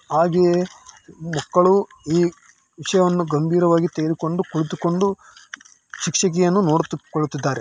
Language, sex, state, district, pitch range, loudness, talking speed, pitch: Kannada, male, Karnataka, Raichur, 160-180 Hz, -20 LUFS, 80 wpm, 170 Hz